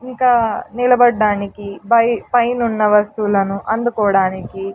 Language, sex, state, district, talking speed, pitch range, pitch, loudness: Telugu, female, Andhra Pradesh, Sri Satya Sai, 75 wpm, 200-240 Hz, 215 Hz, -16 LUFS